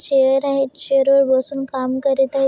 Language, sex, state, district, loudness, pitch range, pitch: Marathi, female, Maharashtra, Chandrapur, -18 LUFS, 265-275 Hz, 270 Hz